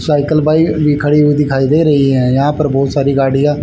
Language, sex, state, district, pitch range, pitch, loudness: Hindi, male, Haryana, Charkhi Dadri, 135-150 Hz, 145 Hz, -12 LUFS